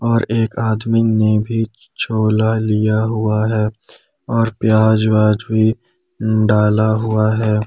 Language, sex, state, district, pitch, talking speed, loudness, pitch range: Hindi, male, Jharkhand, Palamu, 110 Hz, 125 wpm, -16 LUFS, 110-115 Hz